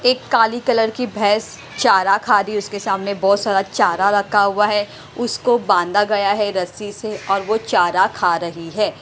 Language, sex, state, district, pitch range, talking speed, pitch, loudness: Hindi, female, Punjab, Pathankot, 195-215 Hz, 195 wpm, 205 Hz, -18 LUFS